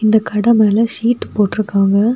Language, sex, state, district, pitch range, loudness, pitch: Tamil, female, Tamil Nadu, Kanyakumari, 210-230 Hz, -14 LUFS, 215 Hz